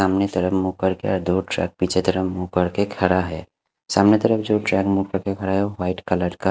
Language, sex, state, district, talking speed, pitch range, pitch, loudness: Hindi, male, Haryana, Charkhi Dadri, 230 wpm, 90-100 Hz, 95 Hz, -21 LUFS